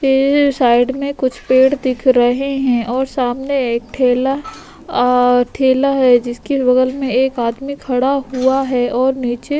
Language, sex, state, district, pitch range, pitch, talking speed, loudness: Hindi, female, Uttar Pradesh, Etah, 245-270 Hz, 260 Hz, 160 wpm, -15 LUFS